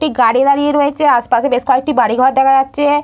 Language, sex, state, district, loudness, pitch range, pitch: Bengali, female, West Bengal, Purulia, -12 LUFS, 255-290 Hz, 270 Hz